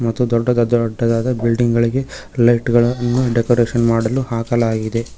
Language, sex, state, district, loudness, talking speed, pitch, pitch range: Kannada, male, Karnataka, Koppal, -17 LUFS, 105 wpm, 120 Hz, 115-120 Hz